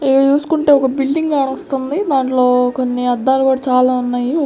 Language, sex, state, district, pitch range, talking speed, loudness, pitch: Telugu, female, Andhra Pradesh, Sri Satya Sai, 255-285 Hz, 150 wpm, -15 LUFS, 265 Hz